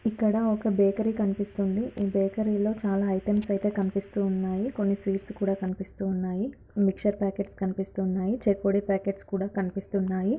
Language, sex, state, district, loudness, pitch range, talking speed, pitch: Telugu, female, Andhra Pradesh, Anantapur, -28 LUFS, 195-210 Hz, 145 wpm, 200 Hz